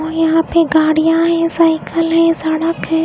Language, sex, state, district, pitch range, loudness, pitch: Hindi, female, Odisha, Khordha, 320-330 Hz, -14 LUFS, 325 Hz